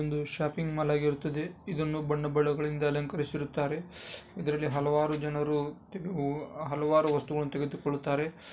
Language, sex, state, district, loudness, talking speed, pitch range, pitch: Kannada, male, Karnataka, Bijapur, -31 LUFS, 100 wpm, 145-155 Hz, 150 Hz